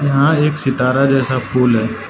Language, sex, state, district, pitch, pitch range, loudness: Hindi, male, Arunachal Pradesh, Lower Dibang Valley, 130 Hz, 125-140 Hz, -15 LUFS